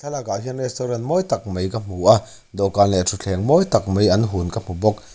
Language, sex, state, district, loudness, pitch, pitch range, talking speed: Mizo, male, Mizoram, Aizawl, -20 LUFS, 105 Hz, 95-125 Hz, 235 wpm